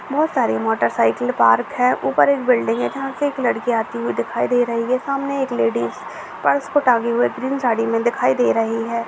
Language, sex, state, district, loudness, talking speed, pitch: Hindi, female, Bihar, Jahanabad, -19 LUFS, 220 wpm, 235 Hz